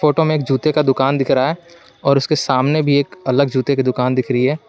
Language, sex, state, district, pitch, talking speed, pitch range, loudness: Hindi, male, Jharkhand, Garhwa, 140 Hz, 270 wpm, 130-155 Hz, -16 LUFS